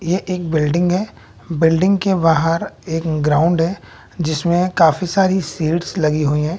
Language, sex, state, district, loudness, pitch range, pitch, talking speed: Hindi, male, Bihar, West Champaran, -17 LUFS, 160-180 Hz, 165 Hz, 155 wpm